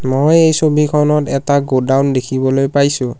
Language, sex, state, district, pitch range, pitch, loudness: Assamese, male, Assam, Kamrup Metropolitan, 130-150 Hz, 140 Hz, -13 LUFS